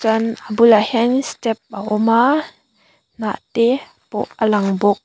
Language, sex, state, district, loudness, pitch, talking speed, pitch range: Mizo, female, Mizoram, Aizawl, -17 LUFS, 225 Hz, 165 wpm, 215-235 Hz